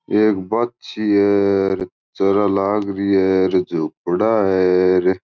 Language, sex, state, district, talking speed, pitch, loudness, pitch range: Marwari, male, Rajasthan, Churu, 105 wpm, 95 Hz, -18 LUFS, 95-100 Hz